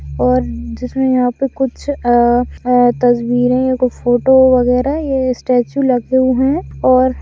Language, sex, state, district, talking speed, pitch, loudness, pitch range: Hindi, female, Bihar, Saharsa, 150 wpm, 250 Hz, -14 LUFS, 245-260 Hz